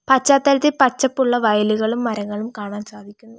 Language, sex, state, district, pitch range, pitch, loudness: Malayalam, female, Kerala, Kollam, 210-265 Hz, 230 Hz, -18 LUFS